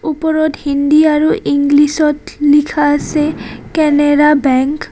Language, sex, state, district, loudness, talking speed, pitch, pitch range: Assamese, female, Assam, Kamrup Metropolitan, -12 LUFS, 120 wpm, 295 Hz, 290-310 Hz